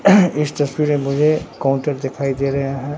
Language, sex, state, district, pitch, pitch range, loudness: Hindi, male, Bihar, Katihar, 145 Hz, 135-150 Hz, -18 LUFS